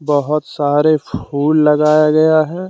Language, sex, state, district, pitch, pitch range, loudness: Hindi, male, Jharkhand, Deoghar, 150 Hz, 145-155 Hz, -14 LUFS